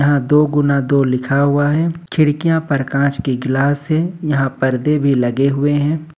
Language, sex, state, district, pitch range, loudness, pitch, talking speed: Hindi, male, Jharkhand, Ranchi, 135-150 Hz, -16 LUFS, 145 Hz, 195 wpm